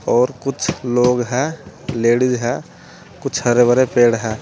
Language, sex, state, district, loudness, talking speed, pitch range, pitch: Hindi, male, Uttar Pradesh, Saharanpur, -17 LUFS, 150 wpm, 120-130 Hz, 125 Hz